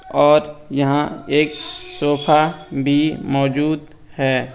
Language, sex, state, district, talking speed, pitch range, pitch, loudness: Hindi, male, Chhattisgarh, Bastar, 90 wpm, 140-155 Hz, 150 Hz, -18 LUFS